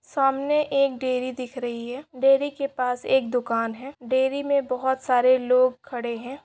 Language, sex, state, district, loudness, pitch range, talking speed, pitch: Hindi, female, Bihar, Saran, -24 LUFS, 250-275 Hz, 175 wpm, 255 Hz